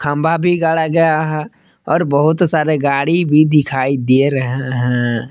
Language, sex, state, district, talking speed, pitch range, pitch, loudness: Hindi, male, Jharkhand, Palamu, 170 wpm, 135-160 Hz, 150 Hz, -15 LUFS